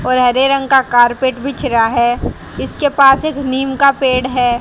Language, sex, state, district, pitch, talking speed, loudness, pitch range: Hindi, female, Haryana, Jhajjar, 260 Hz, 195 wpm, -13 LUFS, 245-275 Hz